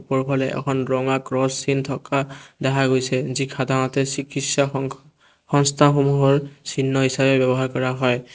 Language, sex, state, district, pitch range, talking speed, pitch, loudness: Assamese, male, Assam, Kamrup Metropolitan, 130-140 Hz, 120 wpm, 135 Hz, -21 LUFS